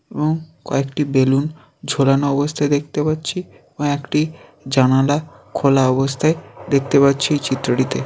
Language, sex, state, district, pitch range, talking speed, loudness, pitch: Bengali, male, West Bengal, Jalpaiguri, 135-150 Hz, 105 wpm, -18 LUFS, 145 Hz